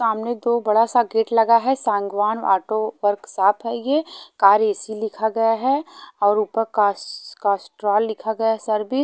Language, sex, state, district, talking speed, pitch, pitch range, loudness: Hindi, female, Haryana, Charkhi Dadri, 170 wpm, 220 Hz, 210-235 Hz, -20 LUFS